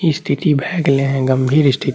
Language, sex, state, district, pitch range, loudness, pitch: Maithili, male, Bihar, Saharsa, 135-160 Hz, -16 LUFS, 140 Hz